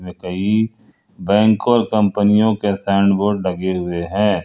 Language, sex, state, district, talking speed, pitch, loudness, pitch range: Hindi, male, Jharkhand, Ranchi, 120 wpm, 100 Hz, -17 LUFS, 95-110 Hz